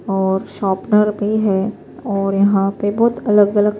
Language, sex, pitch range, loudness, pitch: Urdu, female, 195-210 Hz, -17 LUFS, 205 Hz